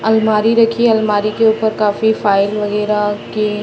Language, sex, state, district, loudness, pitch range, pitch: Hindi, female, Bihar, Sitamarhi, -14 LUFS, 210-220 Hz, 215 Hz